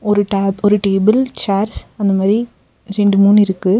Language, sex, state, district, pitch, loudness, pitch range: Tamil, female, Tamil Nadu, Nilgiris, 205 Hz, -14 LUFS, 195-210 Hz